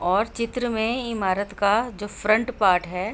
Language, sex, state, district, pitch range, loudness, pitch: Hindi, female, Uttar Pradesh, Budaun, 190-230 Hz, -23 LUFS, 210 Hz